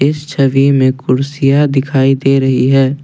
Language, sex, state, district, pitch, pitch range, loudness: Hindi, male, Assam, Kamrup Metropolitan, 135 Hz, 135-140 Hz, -12 LUFS